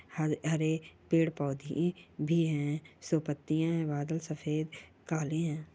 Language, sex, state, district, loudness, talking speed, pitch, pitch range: Hindi, male, Chhattisgarh, Bilaspur, -33 LUFS, 145 wpm, 155 Hz, 150-165 Hz